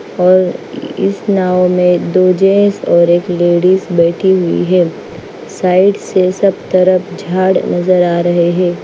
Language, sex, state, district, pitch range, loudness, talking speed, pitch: Hindi, female, Bihar, Patna, 175-185 Hz, -12 LUFS, 145 wpm, 180 Hz